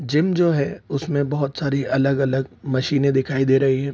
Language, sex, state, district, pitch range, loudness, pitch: Hindi, male, Bihar, Gopalganj, 135-145 Hz, -21 LUFS, 140 Hz